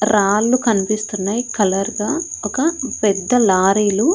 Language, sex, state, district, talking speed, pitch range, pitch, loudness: Telugu, female, Andhra Pradesh, Annamaya, 115 wpm, 200-250 Hz, 210 Hz, -17 LUFS